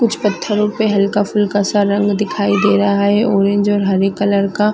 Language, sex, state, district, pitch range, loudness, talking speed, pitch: Hindi, female, Chhattisgarh, Raigarh, 200-210 Hz, -15 LUFS, 190 wpm, 205 Hz